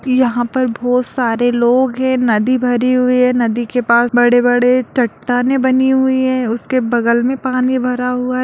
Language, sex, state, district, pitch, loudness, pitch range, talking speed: Hindi, female, Bihar, Lakhisarai, 250 Hz, -14 LUFS, 240-255 Hz, 180 wpm